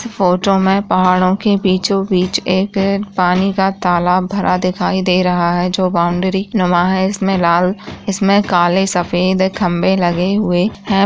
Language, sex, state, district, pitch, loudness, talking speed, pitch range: Hindi, female, Rajasthan, Churu, 185 Hz, -15 LUFS, 155 wpm, 180-195 Hz